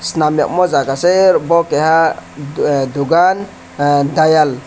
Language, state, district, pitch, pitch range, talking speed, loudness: Kokborok, Tripura, West Tripura, 155 Hz, 145-170 Hz, 140 wpm, -13 LUFS